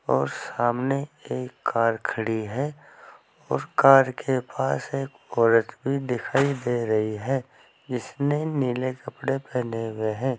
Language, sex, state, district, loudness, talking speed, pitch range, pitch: Hindi, male, Uttar Pradesh, Saharanpur, -25 LUFS, 135 wpm, 115-135 Hz, 125 Hz